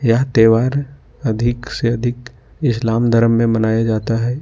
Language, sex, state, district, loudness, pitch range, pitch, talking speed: Hindi, male, Jharkhand, Ranchi, -16 LUFS, 115-120 Hz, 115 Hz, 150 wpm